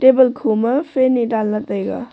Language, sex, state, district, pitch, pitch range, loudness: Wancho, female, Arunachal Pradesh, Longding, 245 Hz, 220-260 Hz, -17 LUFS